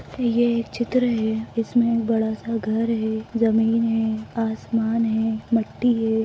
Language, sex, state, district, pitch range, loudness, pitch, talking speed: Hindi, female, Chhattisgarh, Raigarh, 220-230 Hz, -22 LUFS, 225 Hz, 125 wpm